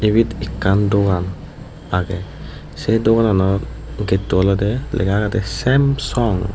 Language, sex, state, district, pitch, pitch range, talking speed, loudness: Chakma, female, Tripura, West Tripura, 100 Hz, 95-115 Hz, 100 wpm, -18 LUFS